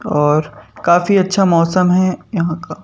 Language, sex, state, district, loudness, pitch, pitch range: Hindi, male, Madhya Pradesh, Bhopal, -15 LUFS, 175 Hz, 160-185 Hz